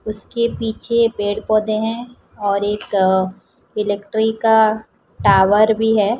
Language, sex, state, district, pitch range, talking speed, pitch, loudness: Hindi, female, Chhattisgarh, Raipur, 205-225 Hz, 115 wpm, 215 Hz, -17 LUFS